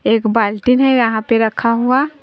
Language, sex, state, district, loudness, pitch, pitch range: Hindi, female, Bihar, West Champaran, -14 LUFS, 230 Hz, 225-255 Hz